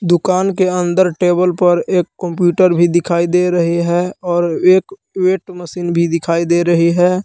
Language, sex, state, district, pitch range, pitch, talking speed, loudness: Hindi, male, Jharkhand, Palamu, 170-185 Hz, 175 Hz, 175 wpm, -14 LUFS